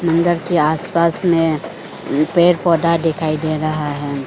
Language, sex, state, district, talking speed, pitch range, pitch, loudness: Hindi, female, Arunachal Pradesh, Lower Dibang Valley, 140 wpm, 155-170 Hz, 165 Hz, -16 LUFS